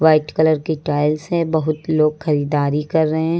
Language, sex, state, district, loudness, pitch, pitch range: Hindi, female, Uttar Pradesh, Lucknow, -18 LUFS, 155 Hz, 150-160 Hz